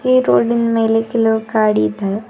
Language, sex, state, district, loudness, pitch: Kannada, female, Karnataka, Bidar, -15 LUFS, 220 Hz